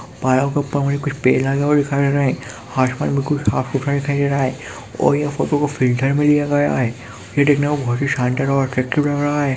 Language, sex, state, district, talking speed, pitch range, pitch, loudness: Hindi, male, Chhattisgarh, Sukma, 250 wpm, 130-145 Hz, 140 Hz, -18 LUFS